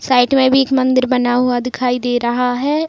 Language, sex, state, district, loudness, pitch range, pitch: Hindi, female, Uttar Pradesh, Jalaun, -15 LUFS, 245-260 Hz, 255 Hz